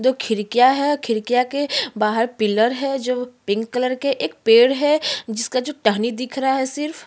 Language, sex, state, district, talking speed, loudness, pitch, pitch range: Hindi, female, Uttarakhand, Tehri Garhwal, 180 wpm, -19 LUFS, 250 Hz, 225-275 Hz